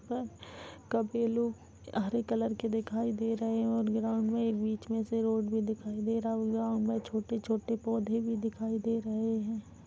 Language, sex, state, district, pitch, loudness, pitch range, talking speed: Hindi, female, Chhattisgarh, Kabirdham, 225 Hz, -33 LUFS, 220-230 Hz, 185 wpm